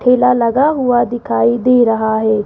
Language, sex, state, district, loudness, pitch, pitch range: Hindi, female, Rajasthan, Jaipur, -13 LUFS, 240 Hz, 220-250 Hz